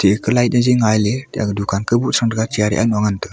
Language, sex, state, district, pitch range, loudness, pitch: Wancho, male, Arunachal Pradesh, Longding, 105-120 Hz, -17 LUFS, 110 Hz